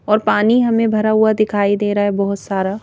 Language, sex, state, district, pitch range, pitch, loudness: Hindi, female, Madhya Pradesh, Bhopal, 200-215 Hz, 210 Hz, -16 LUFS